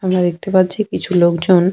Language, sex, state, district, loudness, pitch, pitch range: Bengali, female, West Bengal, Paschim Medinipur, -15 LUFS, 185 Hz, 175-190 Hz